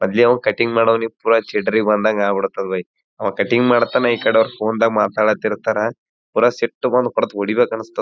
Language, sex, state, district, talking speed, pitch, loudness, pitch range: Kannada, male, Karnataka, Gulbarga, 165 wpm, 110 Hz, -17 LUFS, 105-115 Hz